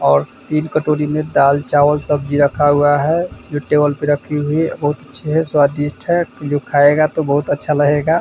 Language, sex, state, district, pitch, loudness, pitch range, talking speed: Hindi, male, Bihar, Vaishali, 145 Hz, -16 LUFS, 145-155 Hz, 195 wpm